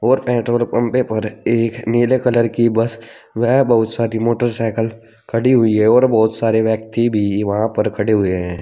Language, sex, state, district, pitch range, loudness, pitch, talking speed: Hindi, male, Uttar Pradesh, Saharanpur, 110-120 Hz, -16 LUFS, 115 Hz, 180 wpm